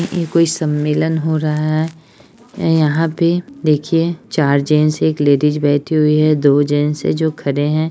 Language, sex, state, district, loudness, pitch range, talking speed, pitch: Hindi, male, Bihar, Araria, -15 LUFS, 150-160 Hz, 175 wpm, 155 Hz